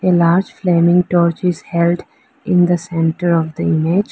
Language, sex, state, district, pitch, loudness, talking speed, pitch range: English, female, Arunachal Pradesh, Lower Dibang Valley, 175 Hz, -15 LUFS, 175 wpm, 170-180 Hz